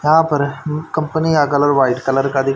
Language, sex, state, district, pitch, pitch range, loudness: Hindi, male, Haryana, Charkhi Dadri, 145 Hz, 135-155 Hz, -16 LUFS